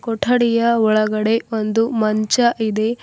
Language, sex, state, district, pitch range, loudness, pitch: Kannada, female, Karnataka, Bidar, 215-235 Hz, -17 LUFS, 225 Hz